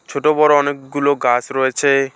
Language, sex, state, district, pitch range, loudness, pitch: Bengali, male, West Bengal, Alipurduar, 135-145 Hz, -16 LUFS, 140 Hz